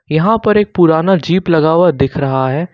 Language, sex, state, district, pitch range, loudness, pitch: Hindi, male, Jharkhand, Ranchi, 155-185 Hz, -12 LUFS, 165 Hz